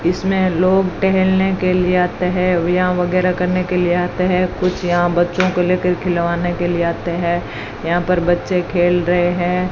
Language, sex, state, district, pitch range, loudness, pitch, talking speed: Hindi, female, Rajasthan, Bikaner, 175-185 Hz, -17 LUFS, 180 Hz, 185 wpm